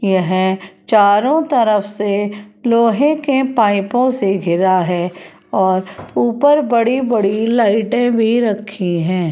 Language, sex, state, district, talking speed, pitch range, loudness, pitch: Hindi, female, Uttar Pradesh, Etah, 110 wpm, 190-240 Hz, -15 LUFS, 210 Hz